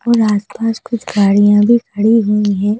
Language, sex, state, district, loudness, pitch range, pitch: Hindi, female, Madhya Pradesh, Bhopal, -13 LUFS, 205-230 Hz, 210 Hz